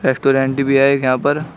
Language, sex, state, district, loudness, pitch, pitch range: Hindi, male, Uttar Pradesh, Shamli, -15 LUFS, 135 Hz, 135-140 Hz